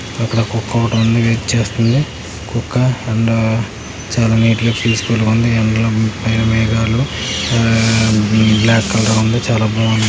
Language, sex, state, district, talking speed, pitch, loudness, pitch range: Telugu, male, Andhra Pradesh, Krishna, 130 wpm, 115 Hz, -15 LUFS, 110-115 Hz